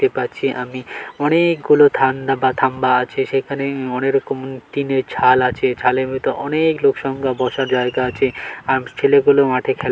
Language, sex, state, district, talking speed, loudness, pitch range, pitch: Bengali, male, West Bengal, Dakshin Dinajpur, 150 wpm, -17 LUFS, 130-140 Hz, 135 Hz